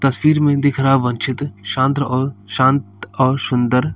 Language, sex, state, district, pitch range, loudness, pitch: Hindi, male, Uttar Pradesh, Lalitpur, 125-140 Hz, -17 LUFS, 130 Hz